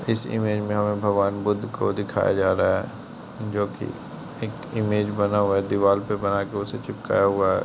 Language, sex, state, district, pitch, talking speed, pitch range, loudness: Hindi, male, Bihar, Jamui, 105 Hz, 195 wpm, 100-110 Hz, -24 LUFS